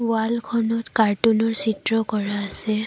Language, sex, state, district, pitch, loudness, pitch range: Assamese, female, Assam, Kamrup Metropolitan, 225 Hz, -22 LUFS, 215-230 Hz